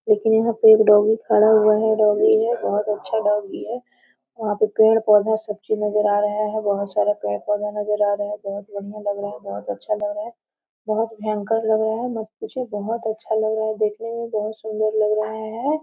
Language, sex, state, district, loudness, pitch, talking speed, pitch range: Hindi, female, Jharkhand, Sahebganj, -21 LUFS, 215 Hz, 235 wpm, 210-220 Hz